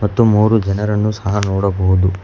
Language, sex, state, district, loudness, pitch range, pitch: Kannada, male, Karnataka, Bangalore, -15 LUFS, 95-105 Hz, 105 Hz